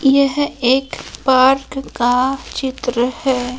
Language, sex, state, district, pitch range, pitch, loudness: Hindi, female, Jharkhand, Palamu, 250-270 Hz, 265 Hz, -16 LUFS